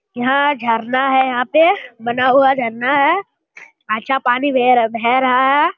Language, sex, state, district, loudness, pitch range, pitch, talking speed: Hindi, male, Bihar, Jamui, -15 LUFS, 245-285 Hz, 260 Hz, 165 wpm